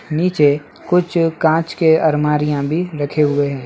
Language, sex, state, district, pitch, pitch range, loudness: Hindi, male, Bihar, Muzaffarpur, 155 Hz, 145-165 Hz, -16 LUFS